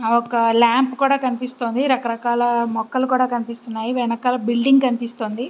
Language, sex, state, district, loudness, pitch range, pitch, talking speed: Telugu, female, Andhra Pradesh, Visakhapatnam, -19 LUFS, 235-255 Hz, 240 Hz, 130 wpm